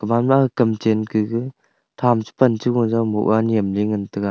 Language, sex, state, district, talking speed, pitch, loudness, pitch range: Wancho, male, Arunachal Pradesh, Longding, 195 wpm, 110 Hz, -19 LUFS, 110-120 Hz